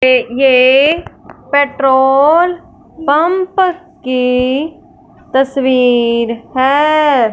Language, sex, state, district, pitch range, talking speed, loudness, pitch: Hindi, female, Punjab, Fazilka, 255-305 Hz, 55 wpm, -12 LUFS, 270 Hz